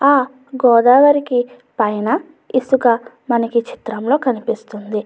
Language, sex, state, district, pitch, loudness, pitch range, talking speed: Telugu, female, Andhra Pradesh, Anantapur, 245 Hz, -16 LUFS, 230-265 Hz, 95 wpm